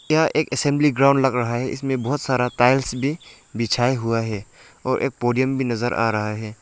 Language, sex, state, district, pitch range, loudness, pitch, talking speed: Hindi, male, Arunachal Pradesh, Lower Dibang Valley, 115-135 Hz, -21 LUFS, 125 Hz, 210 wpm